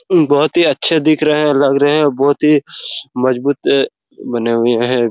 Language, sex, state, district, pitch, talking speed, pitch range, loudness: Hindi, male, Chhattisgarh, Raigarh, 145 Hz, 190 wpm, 125-150 Hz, -14 LUFS